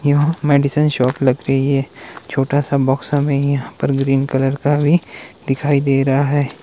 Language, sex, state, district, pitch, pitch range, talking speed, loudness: Hindi, male, Himachal Pradesh, Shimla, 140 Hz, 135-145 Hz, 180 wpm, -17 LUFS